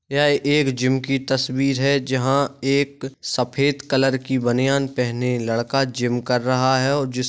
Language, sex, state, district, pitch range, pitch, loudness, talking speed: Hindi, male, Uttar Pradesh, Jalaun, 125-140 Hz, 135 Hz, -20 LUFS, 165 wpm